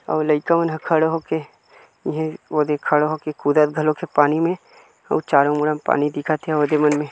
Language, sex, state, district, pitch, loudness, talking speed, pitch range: Chhattisgarhi, male, Chhattisgarh, Kabirdham, 155 Hz, -20 LUFS, 210 wpm, 150-160 Hz